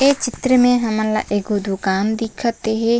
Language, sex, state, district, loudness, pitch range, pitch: Chhattisgarhi, female, Chhattisgarh, Raigarh, -18 LUFS, 205-245 Hz, 220 Hz